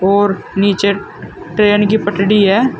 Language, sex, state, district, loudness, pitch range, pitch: Hindi, male, Uttar Pradesh, Saharanpur, -13 LUFS, 195-210 Hz, 200 Hz